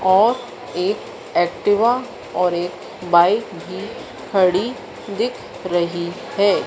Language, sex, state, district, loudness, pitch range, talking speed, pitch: Hindi, female, Madhya Pradesh, Dhar, -20 LUFS, 175-220 Hz, 100 wpm, 185 Hz